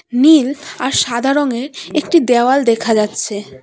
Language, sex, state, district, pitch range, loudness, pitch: Bengali, female, West Bengal, Cooch Behar, 230-290 Hz, -14 LUFS, 255 Hz